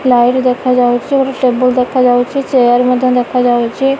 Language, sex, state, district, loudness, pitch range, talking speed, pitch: Odia, female, Odisha, Malkangiri, -12 LUFS, 245-260 Hz, 120 wpm, 250 Hz